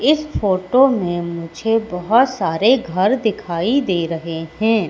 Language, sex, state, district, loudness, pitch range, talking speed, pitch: Hindi, female, Madhya Pradesh, Katni, -18 LUFS, 170-240 Hz, 135 wpm, 195 Hz